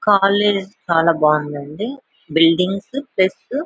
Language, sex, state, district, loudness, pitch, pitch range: Telugu, female, Telangana, Nalgonda, -18 LUFS, 195 Hz, 165-215 Hz